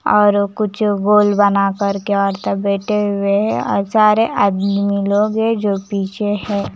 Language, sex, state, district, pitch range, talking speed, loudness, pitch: Hindi, female, Himachal Pradesh, Shimla, 200-210 Hz, 160 wpm, -16 LUFS, 205 Hz